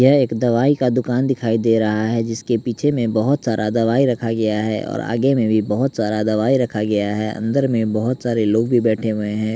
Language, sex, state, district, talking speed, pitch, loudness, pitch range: Hindi, male, Bihar, West Champaran, 230 wpm, 115 Hz, -18 LUFS, 110-125 Hz